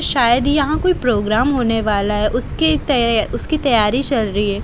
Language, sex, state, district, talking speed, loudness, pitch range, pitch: Hindi, female, Haryana, Jhajjar, 180 wpm, -16 LUFS, 215-280 Hz, 240 Hz